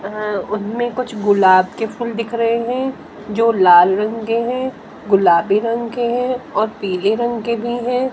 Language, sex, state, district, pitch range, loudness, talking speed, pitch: Hindi, female, Haryana, Jhajjar, 205-240 Hz, -17 LUFS, 175 wpm, 230 Hz